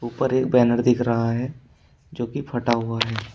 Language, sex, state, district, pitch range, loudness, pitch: Hindi, male, Uttar Pradesh, Shamli, 115-125 Hz, -22 LUFS, 120 Hz